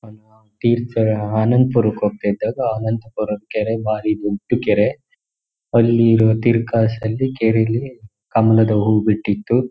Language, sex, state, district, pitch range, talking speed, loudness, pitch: Kannada, male, Karnataka, Shimoga, 105-115 Hz, 115 wpm, -18 LUFS, 110 Hz